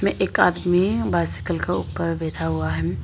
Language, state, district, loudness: Hindi, Arunachal Pradesh, Lower Dibang Valley, -22 LUFS